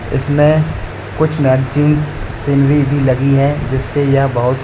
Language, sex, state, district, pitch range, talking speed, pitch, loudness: Hindi, male, Uttar Pradesh, Lalitpur, 130-145 Hz, 130 wpm, 140 Hz, -14 LUFS